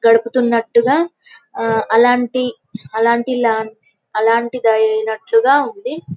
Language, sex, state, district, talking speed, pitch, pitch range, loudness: Telugu, female, Telangana, Karimnagar, 60 wpm, 235 Hz, 225-255 Hz, -16 LUFS